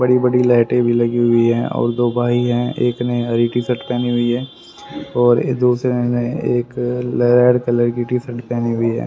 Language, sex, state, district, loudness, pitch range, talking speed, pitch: Hindi, male, Haryana, Rohtak, -17 LUFS, 120-125 Hz, 205 wpm, 120 Hz